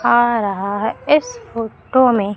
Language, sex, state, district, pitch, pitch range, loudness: Hindi, female, Madhya Pradesh, Umaria, 230 Hz, 210-255 Hz, -17 LUFS